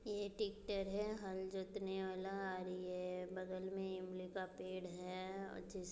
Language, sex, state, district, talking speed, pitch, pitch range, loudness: Hindi, female, Bihar, Muzaffarpur, 160 wpm, 190 Hz, 185-195 Hz, -46 LUFS